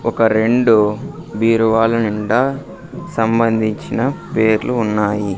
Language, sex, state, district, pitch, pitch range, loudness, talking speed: Telugu, male, Andhra Pradesh, Sri Satya Sai, 115 Hz, 110-120 Hz, -16 LUFS, 80 wpm